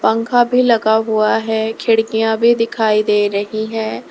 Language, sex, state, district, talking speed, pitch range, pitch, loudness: Hindi, female, Uttar Pradesh, Lalitpur, 160 wpm, 215-230 Hz, 220 Hz, -15 LUFS